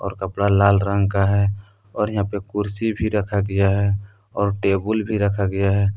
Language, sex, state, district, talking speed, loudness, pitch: Hindi, male, Jharkhand, Palamu, 190 wpm, -21 LUFS, 100 Hz